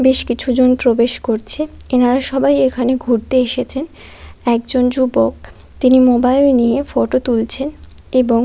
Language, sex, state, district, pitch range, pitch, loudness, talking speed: Bengali, female, West Bengal, Kolkata, 235-260 Hz, 250 Hz, -15 LUFS, 130 wpm